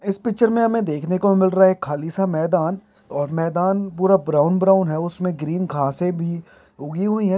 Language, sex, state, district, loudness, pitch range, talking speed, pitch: Hindi, male, Bihar, Saran, -20 LUFS, 160-195 Hz, 210 wpm, 185 Hz